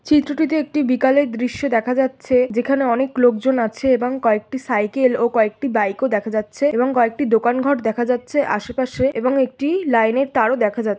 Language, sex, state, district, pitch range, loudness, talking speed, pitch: Bengali, female, West Bengal, Jhargram, 230-270 Hz, -18 LUFS, 175 wpm, 255 Hz